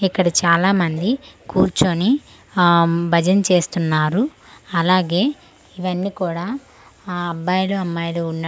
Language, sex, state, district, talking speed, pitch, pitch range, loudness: Telugu, female, Andhra Pradesh, Manyam, 105 wpm, 180 Hz, 170-190 Hz, -19 LUFS